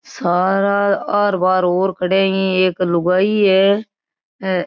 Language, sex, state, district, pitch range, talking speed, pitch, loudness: Marwari, female, Rajasthan, Nagaur, 185-200 Hz, 115 wpm, 190 Hz, -16 LUFS